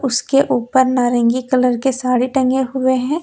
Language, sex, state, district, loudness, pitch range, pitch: Hindi, female, Jharkhand, Deoghar, -16 LUFS, 250-265 Hz, 255 Hz